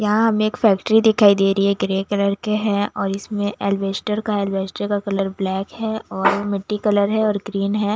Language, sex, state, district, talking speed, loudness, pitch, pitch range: Hindi, female, Bihar, West Champaran, 220 wpm, -19 LUFS, 205 Hz, 195-210 Hz